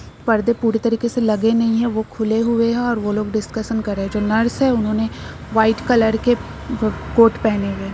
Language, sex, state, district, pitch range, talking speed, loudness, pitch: Hindi, female, Bihar, East Champaran, 215-230 Hz, 225 wpm, -18 LUFS, 225 Hz